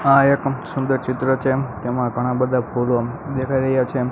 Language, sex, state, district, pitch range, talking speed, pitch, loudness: Gujarati, male, Gujarat, Gandhinagar, 125-135 Hz, 175 wpm, 130 Hz, -20 LUFS